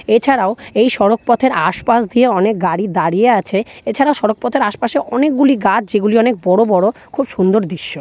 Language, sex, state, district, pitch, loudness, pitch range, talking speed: Bengali, female, West Bengal, North 24 Parganas, 225 Hz, -14 LUFS, 200-245 Hz, 180 wpm